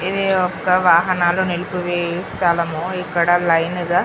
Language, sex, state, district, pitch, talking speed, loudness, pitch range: Telugu, female, Telangana, Karimnagar, 175 Hz, 90 wpm, -18 LUFS, 170-185 Hz